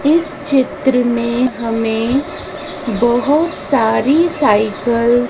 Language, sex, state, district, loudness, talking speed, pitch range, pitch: Hindi, female, Madhya Pradesh, Dhar, -15 LUFS, 90 wpm, 235-285 Hz, 245 Hz